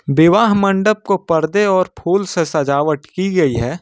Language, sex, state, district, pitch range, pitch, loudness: Hindi, male, Jharkhand, Ranchi, 155-195 Hz, 175 Hz, -15 LUFS